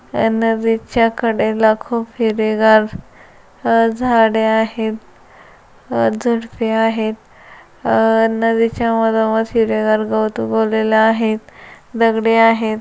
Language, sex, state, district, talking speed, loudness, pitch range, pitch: Marathi, female, Maharashtra, Solapur, 95 wpm, -16 LUFS, 220-225 Hz, 225 Hz